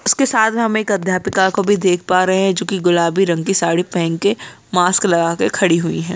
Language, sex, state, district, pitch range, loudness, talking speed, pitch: Hindi, male, Bihar, Gaya, 175-200 Hz, -16 LUFS, 255 wpm, 190 Hz